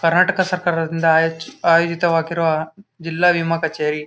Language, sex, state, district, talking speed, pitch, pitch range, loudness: Kannada, male, Karnataka, Gulbarga, 120 wpm, 165 Hz, 160-175 Hz, -18 LUFS